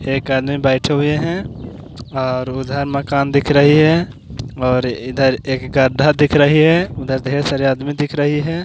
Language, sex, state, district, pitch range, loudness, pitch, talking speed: Hindi, male, Maharashtra, Aurangabad, 130-145 Hz, -16 LUFS, 140 Hz, 175 wpm